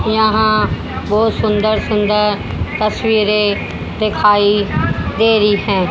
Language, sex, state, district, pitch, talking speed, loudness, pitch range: Hindi, female, Haryana, Rohtak, 210 Hz, 90 wpm, -15 LUFS, 205-215 Hz